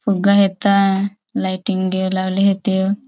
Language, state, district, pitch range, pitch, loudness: Bhili, Maharashtra, Dhule, 190-200 Hz, 195 Hz, -17 LUFS